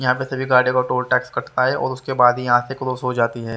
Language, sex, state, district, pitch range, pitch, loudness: Hindi, male, Haryana, Rohtak, 125-130 Hz, 125 Hz, -19 LUFS